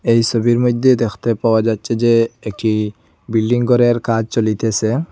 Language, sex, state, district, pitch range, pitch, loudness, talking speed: Bengali, male, Assam, Hailakandi, 110-120 Hz, 115 Hz, -16 LUFS, 140 wpm